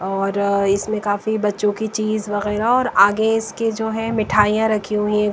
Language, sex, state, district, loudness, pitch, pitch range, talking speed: Hindi, female, Bihar, West Champaran, -19 LUFS, 210 Hz, 205-220 Hz, 190 wpm